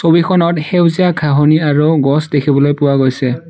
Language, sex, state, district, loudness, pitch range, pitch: Assamese, male, Assam, Sonitpur, -12 LUFS, 145-165 Hz, 150 Hz